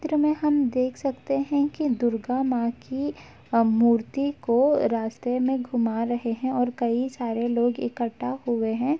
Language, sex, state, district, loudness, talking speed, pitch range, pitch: Hindi, female, Uttar Pradesh, Jalaun, -25 LUFS, 165 wpm, 235-275 Hz, 245 Hz